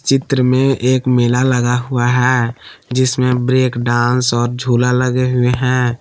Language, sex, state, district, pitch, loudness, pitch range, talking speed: Hindi, male, Jharkhand, Palamu, 125 Hz, -15 LUFS, 120-130 Hz, 150 wpm